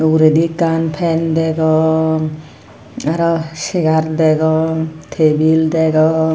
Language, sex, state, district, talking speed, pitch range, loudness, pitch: Chakma, female, Tripura, Dhalai, 85 wpm, 155-160 Hz, -15 LUFS, 160 Hz